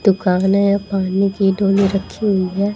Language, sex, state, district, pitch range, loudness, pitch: Hindi, female, Haryana, Charkhi Dadri, 190-200 Hz, -17 LUFS, 195 Hz